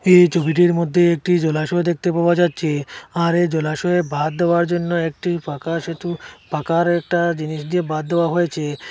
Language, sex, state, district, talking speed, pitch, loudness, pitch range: Bengali, male, Assam, Hailakandi, 160 wpm, 170 Hz, -19 LUFS, 155-175 Hz